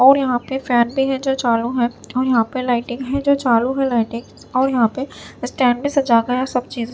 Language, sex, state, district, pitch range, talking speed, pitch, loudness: Hindi, female, Chhattisgarh, Raipur, 240-270 Hz, 200 wpm, 250 Hz, -18 LUFS